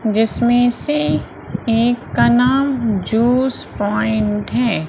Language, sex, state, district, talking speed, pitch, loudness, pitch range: Hindi, female, Madhya Pradesh, Umaria, 100 wpm, 225 Hz, -17 LUFS, 150-245 Hz